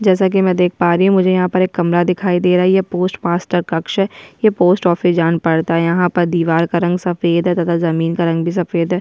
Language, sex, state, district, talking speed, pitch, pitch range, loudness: Hindi, female, Bihar, Kishanganj, 265 wpm, 175 Hz, 170-185 Hz, -15 LUFS